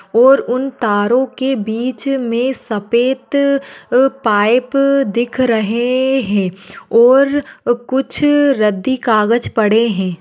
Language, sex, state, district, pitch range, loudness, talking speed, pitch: Hindi, female, Maharashtra, Pune, 220-265 Hz, -14 LUFS, 105 wpm, 245 Hz